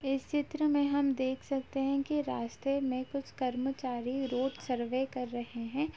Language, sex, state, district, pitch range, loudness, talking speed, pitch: Hindi, female, Uttar Pradesh, Jalaun, 255-280 Hz, -33 LUFS, 170 wpm, 270 Hz